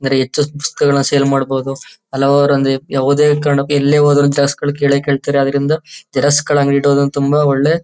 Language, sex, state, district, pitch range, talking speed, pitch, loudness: Kannada, male, Karnataka, Chamarajanagar, 140-145 Hz, 170 wpm, 140 Hz, -14 LUFS